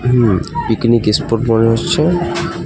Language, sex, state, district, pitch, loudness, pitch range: Bengali, male, West Bengal, Alipurduar, 120 Hz, -14 LUFS, 115-165 Hz